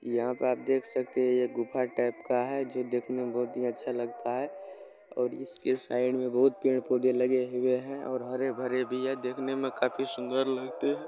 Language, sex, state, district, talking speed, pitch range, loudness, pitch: Hindi, male, Bihar, Supaul, 205 wpm, 125-130 Hz, -30 LUFS, 125 Hz